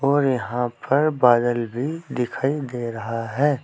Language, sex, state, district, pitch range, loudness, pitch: Hindi, male, Uttar Pradesh, Saharanpur, 120-140 Hz, -22 LUFS, 125 Hz